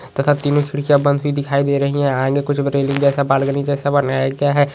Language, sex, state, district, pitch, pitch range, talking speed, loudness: Magahi, male, Bihar, Gaya, 140 Hz, 140-145 Hz, 225 wpm, -17 LUFS